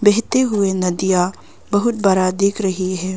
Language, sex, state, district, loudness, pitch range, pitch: Hindi, female, Arunachal Pradesh, Longding, -18 LUFS, 185-205 Hz, 195 Hz